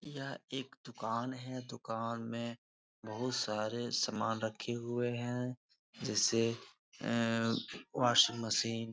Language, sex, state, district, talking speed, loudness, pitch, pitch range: Hindi, male, Bihar, Jahanabad, 115 wpm, -36 LUFS, 115 Hz, 115-125 Hz